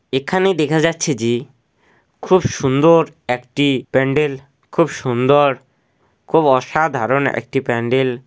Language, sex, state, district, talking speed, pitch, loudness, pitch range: Bengali, male, West Bengal, Jhargram, 100 wpm, 135 Hz, -17 LUFS, 130-155 Hz